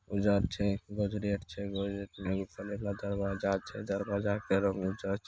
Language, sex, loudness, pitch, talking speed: Angika, male, -34 LUFS, 100 Hz, 160 wpm